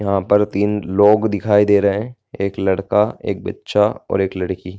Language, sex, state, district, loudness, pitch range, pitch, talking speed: Hindi, male, Bihar, Darbhanga, -17 LUFS, 95-105 Hz, 100 Hz, 190 wpm